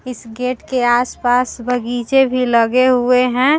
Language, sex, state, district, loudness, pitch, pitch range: Hindi, female, Bihar, Vaishali, -15 LUFS, 250 Hz, 245-255 Hz